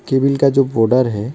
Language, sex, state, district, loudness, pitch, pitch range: Hindi, male, West Bengal, Alipurduar, -15 LUFS, 130 Hz, 115-135 Hz